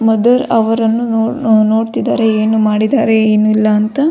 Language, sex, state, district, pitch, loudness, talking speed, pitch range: Kannada, female, Karnataka, Belgaum, 225 Hz, -12 LUFS, 115 wpm, 215-230 Hz